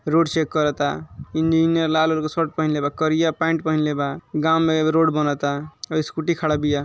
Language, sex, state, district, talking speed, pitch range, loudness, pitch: Bhojpuri, male, Uttar Pradesh, Ghazipur, 175 wpm, 150-160 Hz, -21 LUFS, 155 Hz